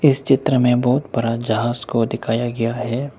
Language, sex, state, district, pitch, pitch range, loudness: Hindi, male, Arunachal Pradesh, Lower Dibang Valley, 120 Hz, 115-130 Hz, -19 LUFS